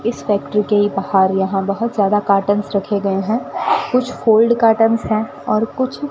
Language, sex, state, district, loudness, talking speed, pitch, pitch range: Hindi, female, Rajasthan, Bikaner, -17 LUFS, 185 wpm, 210 Hz, 200-230 Hz